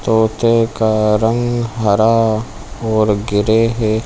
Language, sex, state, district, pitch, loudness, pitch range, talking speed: Hindi, male, Chhattisgarh, Bilaspur, 110 Hz, -15 LUFS, 110-115 Hz, 105 wpm